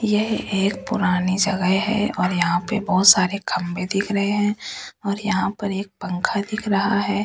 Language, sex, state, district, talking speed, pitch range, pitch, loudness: Hindi, female, Delhi, New Delhi, 180 wpm, 185-205 Hz, 200 Hz, -21 LUFS